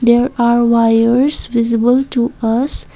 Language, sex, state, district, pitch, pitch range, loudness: English, female, Assam, Kamrup Metropolitan, 235 Hz, 230-250 Hz, -13 LUFS